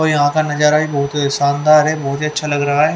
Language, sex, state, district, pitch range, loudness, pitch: Hindi, male, Haryana, Charkhi Dadri, 145-150 Hz, -15 LUFS, 150 Hz